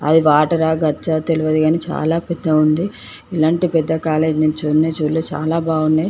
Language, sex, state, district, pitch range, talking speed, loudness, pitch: Telugu, female, Andhra Pradesh, Chittoor, 155-165 Hz, 165 wpm, -17 LUFS, 160 Hz